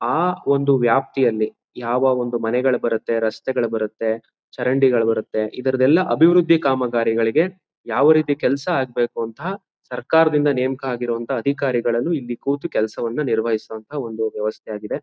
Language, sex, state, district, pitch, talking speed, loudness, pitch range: Kannada, male, Karnataka, Mysore, 125 Hz, 120 wpm, -20 LUFS, 115-140 Hz